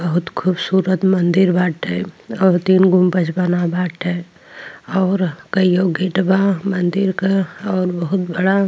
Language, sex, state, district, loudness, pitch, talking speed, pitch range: Bhojpuri, female, Uttar Pradesh, Ghazipur, -17 LUFS, 185 Hz, 130 wpm, 175-190 Hz